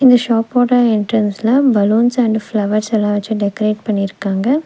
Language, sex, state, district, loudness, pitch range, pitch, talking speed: Tamil, female, Tamil Nadu, Nilgiris, -15 LUFS, 210-240 Hz, 220 Hz, 130 wpm